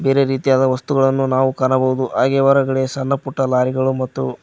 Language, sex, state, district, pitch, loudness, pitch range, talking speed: Kannada, male, Karnataka, Koppal, 130 Hz, -17 LUFS, 130-135 Hz, 135 wpm